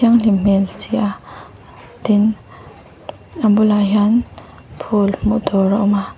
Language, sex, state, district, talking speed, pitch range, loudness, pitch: Mizo, female, Mizoram, Aizawl, 125 wpm, 195-215 Hz, -16 LUFS, 205 Hz